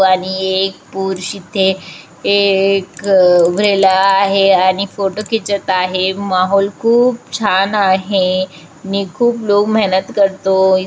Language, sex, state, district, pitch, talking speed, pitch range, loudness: Marathi, female, Maharashtra, Chandrapur, 195 Hz, 110 wpm, 185-200 Hz, -14 LUFS